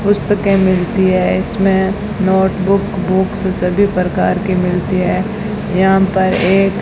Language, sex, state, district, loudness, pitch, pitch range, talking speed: Hindi, female, Rajasthan, Bikaner, -14 LUFS, 190 Hz, 185-200 Hz, 140 wpm